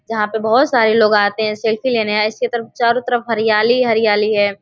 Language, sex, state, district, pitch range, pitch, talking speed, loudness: Hindi, female, Uttar Pradesh, Gorakhpur, 215-235 Hz, 220 Hz, 220 wpm, -15 LUFS